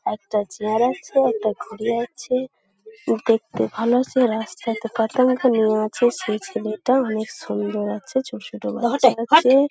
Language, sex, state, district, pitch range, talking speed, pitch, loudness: Bengali, female, West Bengal, Malda, 215-255 Hz, 135 wpm, 230 Hz, -21 LUFS